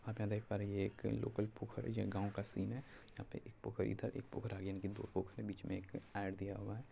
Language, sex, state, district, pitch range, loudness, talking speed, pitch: Hindi, male, Bihar, Purnia, 100-115 Hz, -44 LUFS, 310 wpm, 105 Hz